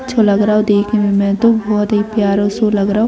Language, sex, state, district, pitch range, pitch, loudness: Hindi, female, Jharkhand, Jamtara, 205-215 Hz, 210 Hz, -14 LUFS